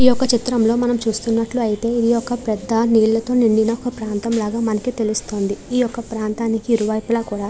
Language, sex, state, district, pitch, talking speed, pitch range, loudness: Telugu, female, Andhra Pradesh, Krishna, 230 Hz, 185 wpm, 220-235 Hz, -19 LUFS